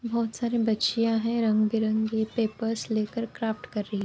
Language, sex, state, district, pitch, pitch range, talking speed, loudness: Hindi, female, Uttar Pradesh, Jyotiba Phule Nagar, 225 Hz, 220-230 Hz, 165 wpm, -27 LUFS